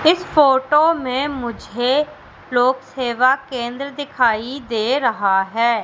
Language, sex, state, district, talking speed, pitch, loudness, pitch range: Hindi, female, Madhya Pradesh, Katni, 105 wpm, 255 Hz, -18 LUFS, 235-280 Hz